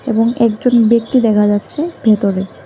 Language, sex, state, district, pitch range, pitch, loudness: Bengali, female, Tripura, West Tripura, 210-245 Hz, 225 Hz, -13 LUFS